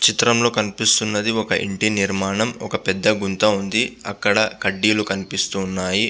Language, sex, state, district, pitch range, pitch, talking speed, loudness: Telugu, male, Andhra Pradesh, Visakhapatnam, 95-110 Hz, 105 Hz, 130 wpm, -19 LUFS